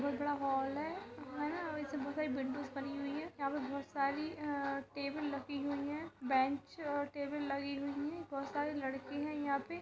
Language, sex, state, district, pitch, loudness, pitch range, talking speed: Hindi, female, Uttar Pradesh, Budaun, 285 Hz, -39 LUFS, 275-295 Hz, 200 wpm